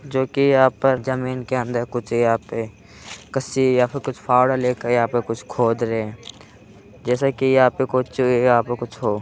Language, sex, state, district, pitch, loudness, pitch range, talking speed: Hindi, male, Uttar Pradesh, Hamirpur, 125 Hz, -20 LUFS, 115-130 Hz, 200 wpm